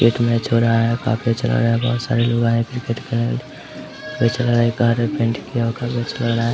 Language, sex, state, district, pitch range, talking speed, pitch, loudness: Hindi, male, Bihar, Samastipur, 115-120 Hz, 165 wpm, 115 Hz, -19 LUFS